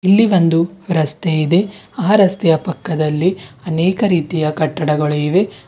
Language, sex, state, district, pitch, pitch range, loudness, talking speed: Kannada, female, Karnataka, Bidar, 170 Hz, 155-190 Hz, -16 LUFS, 115 wpm